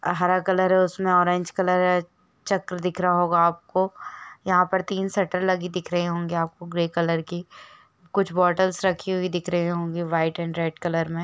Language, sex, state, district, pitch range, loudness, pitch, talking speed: Hindi, female, Jharkhand, Jamtara, 170-185 Hz, -23 LUFS, 180 Hz, 185 wpm